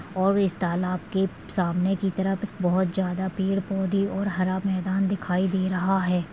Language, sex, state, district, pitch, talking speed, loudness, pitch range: Hindi, female, Maharashtra, Nagpur, 190 Hz, 180 wpm, -25 LUFS, 185-195 Hz